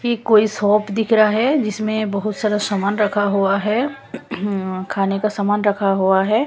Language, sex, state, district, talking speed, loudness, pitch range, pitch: Hindi, female, Punjab, Kapurthala, 175 wpm, -18 LUFS, 200-215 Hz, 210 Hz